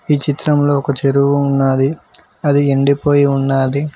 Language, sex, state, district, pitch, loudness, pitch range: Telugu, male, Telangana, Mahabubabad, 140 Hz, -14 LUFS, 135-145 Hz